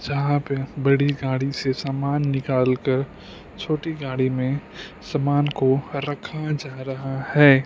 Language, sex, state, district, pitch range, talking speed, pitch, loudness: Hindi, male, Punjab, Kapurthala, 135-145 Hz, 135 wpm, 140 Hz, -23 LUFS